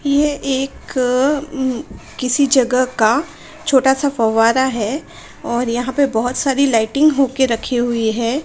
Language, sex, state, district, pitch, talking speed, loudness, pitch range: Hindi, female, Uttar Pradesh, Varanasi, 260 Hz, 135 wpm, -17 LUFS, 240-280 Hz